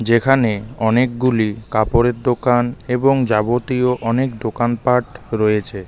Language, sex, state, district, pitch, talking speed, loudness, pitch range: Bengali, male, West Bengal, Darjeeling, 120 Hz, 100 wpm, -17 LUFS, 110-125 Hz